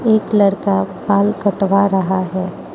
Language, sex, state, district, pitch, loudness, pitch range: Hindi, female, Mizoram, Aizawl, 200 Hz, -16 LUFS, 190-205 Hz